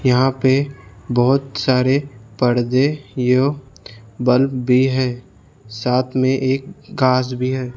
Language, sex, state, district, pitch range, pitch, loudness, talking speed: Hindi, male, Maharashtra, Gondia, 125-135 Hz, 130 Hz, -18 LUFS, 115 wpm